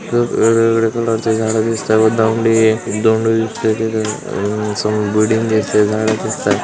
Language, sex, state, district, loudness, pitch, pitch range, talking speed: Marathi, male, Maharashtra, Dhule, -15 LUFS, 110 Hz, 110-115 Hz, 135 wpm